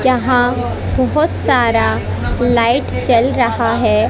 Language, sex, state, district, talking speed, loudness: Hindi, female, Haryana, Jhajjar, 100 wpm, -15 LUFS